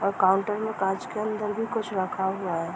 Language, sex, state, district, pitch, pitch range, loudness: Hindi, female, Bihar, Darbhanga, 195 Hz, 190-215 Hz, -27 LUFS